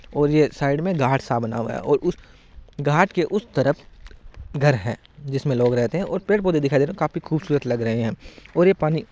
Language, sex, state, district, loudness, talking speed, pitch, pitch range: Marwari, male, Rajasthan, Nagaur, -22 LUFS, 235 wpm, 145 Hz, 130-170 Hz